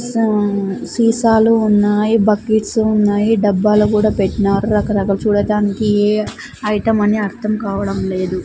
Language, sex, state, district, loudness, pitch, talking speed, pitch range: Telugu, female, Andhra Pradesh, Sri Satya Sai, -15 LUFS, 210 Hz, 115 wpm, 205-220 Hz